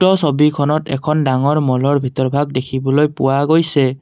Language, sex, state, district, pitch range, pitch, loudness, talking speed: Assamese, male, Assam, Kamrup Metropolitan, 135-150 Hz, 145 Hz, -15 LUFS, 135 wpm